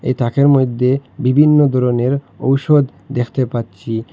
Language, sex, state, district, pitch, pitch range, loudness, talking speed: Bengali, male, Assam, Hailakandi, 130 Hz, 120-140 Hz, -15 LUFS, 100 wpm